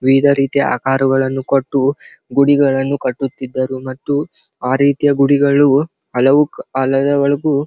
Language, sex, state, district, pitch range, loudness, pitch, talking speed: Kannada, male, Karnataka, Belgaum, 135-140 Hz, -15 LUFS, 140 Hz, 95 wpm